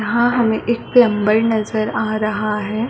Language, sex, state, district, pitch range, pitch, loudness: Hindi, female, Chhattisgarh, Bilaspur, 215-235 Hz, 220 Hz, -17 LUFS